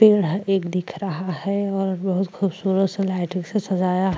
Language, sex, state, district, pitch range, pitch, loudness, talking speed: Hindi, female, Goa, North and South Goa, 180-195 Hz, 190 Hz, -23 LUFS, 200 wpm